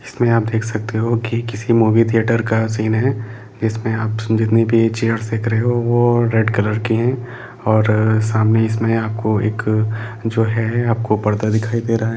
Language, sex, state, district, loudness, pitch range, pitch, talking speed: Hindi, male, Jharkhand, Jamtara, -17 LUFS, 110-115 Hz, 115 Hz, 165 wpm